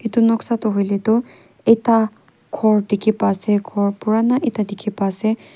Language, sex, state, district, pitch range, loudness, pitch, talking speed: Nagamese, female, Nagaland, Kohima, 205-230 Hz, -18 LUFS, 220 Hz, 160 wpm